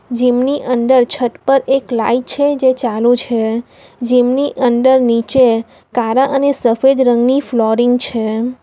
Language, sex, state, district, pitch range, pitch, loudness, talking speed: Gujarati, female, Gujarat, Valsad, 235-265 Hz, 250 Hz, -14 LUFS, 145 wpm